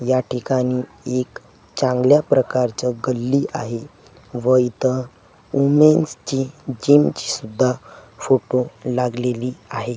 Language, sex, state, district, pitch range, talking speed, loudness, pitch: Marathi, male, Maharashtra, Gondia, 125-135 Hz, 90 wpm, -19 LUFS, 130 Hz